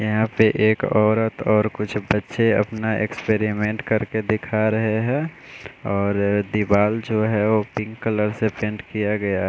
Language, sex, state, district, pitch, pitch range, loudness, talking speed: Hindi, male, Bihar, West Champaran, 110 Hz, 105-110 Hz, -21 LUFS, 150 wpm